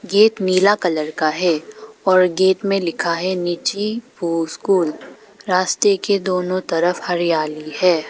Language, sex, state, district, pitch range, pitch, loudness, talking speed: Hindi, female, Arunachal Pradesh, Papum Pare, 170-200 Hz, 185 Hz, -18 LUFS, 140 wpm